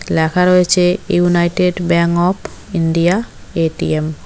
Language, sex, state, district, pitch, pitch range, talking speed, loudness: Bengali, female, West Bengal, Cooch Behar, 175 Hz, 165-180 Hz, 115 wpm, -15 LUFS